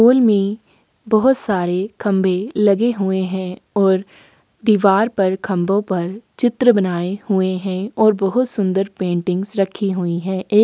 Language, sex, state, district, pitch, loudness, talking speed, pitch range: Hindi, female, Maharashtra, Aurangabad, 195 Hz, -18 LUFS, 145 wpm, 185-215 Hz